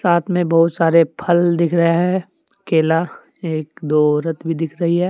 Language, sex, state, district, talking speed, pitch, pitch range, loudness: Hindi, male, Jharkhand, Deoghar, 190 wpm, 170 Hz, 165-175 Hz, -17 LUFS